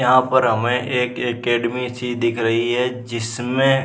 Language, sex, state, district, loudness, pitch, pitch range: Hindi, male, Bihar, Vaishali, -20 LUFS, 125 Hz, 120-125 Hz